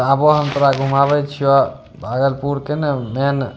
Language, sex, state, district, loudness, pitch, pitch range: Angika, male, Bihar, Bhagalpur, -17 LUFS, 140 Hz, 135-145 Hz